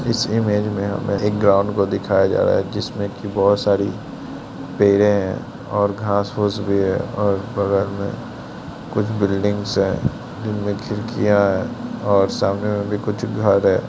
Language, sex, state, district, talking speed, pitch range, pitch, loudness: Hindi, male, Bihar, Jamui, 145 wpm, 100-105 Hz, 100 Hz, -19 LUFS